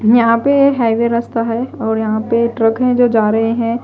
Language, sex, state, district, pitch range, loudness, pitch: Hindi, female, Delhi, New Delhi, 225-240 Hz, -14 LUFS, 230 Hz